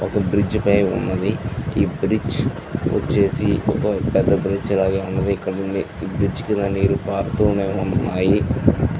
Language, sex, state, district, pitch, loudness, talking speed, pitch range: Telugu, male, Andhra Pradesh, Chittoor, 100 Hz, -20 LUFS, 125 wpm, 95-105 Hz